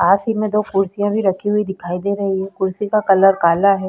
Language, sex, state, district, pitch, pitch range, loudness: Hindi, female, Uttar Pradesh, Budaun, 195 Hz, 190-205 Hz, -17 LUFS